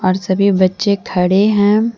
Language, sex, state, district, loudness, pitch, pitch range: Hindi, female, Jharkhand, Deoghar, -14 LUFS, 200 Hz, 185-205 Hz